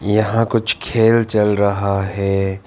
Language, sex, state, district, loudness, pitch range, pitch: Hindi, male, Arunachal Pradesh, Papum Pare, -17 LUFS, 100-110 Hz, 105 Hz